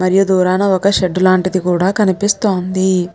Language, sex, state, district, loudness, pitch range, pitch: Telugu, female, Telangana, Nalgonda, -14 LUFS, 185-195 Hz, 185 Hz